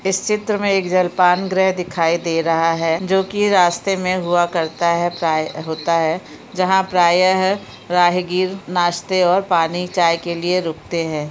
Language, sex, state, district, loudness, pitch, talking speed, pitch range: Hindi, female, Chhattisgarh, Bilaspur, -18 LUFS, 175 Hz, 165 wpm, 170-190 Hz